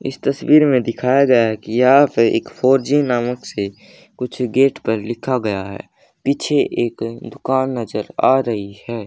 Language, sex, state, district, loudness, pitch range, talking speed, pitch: Hindi, male, Haryana, Jhajjar, -17 LUFS, 115-130 Hz, 170 wpm, 125 Hz